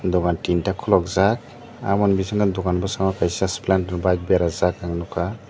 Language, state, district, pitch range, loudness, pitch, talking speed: Kokborok, Tripura, Dhalai, 90-100 Hz, -21 LUFS, 95 Hz, 155 wpm